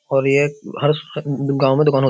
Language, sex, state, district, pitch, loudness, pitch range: Hindi, male, Uttar Pradesh, Budaun, 140 Hz, -18 LUFS, 135-150 Hz